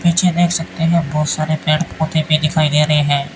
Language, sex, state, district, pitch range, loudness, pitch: Hindi, male, Rajasthan, Bikaner, 150-165 Hz, -16 LUFS, 155 Hz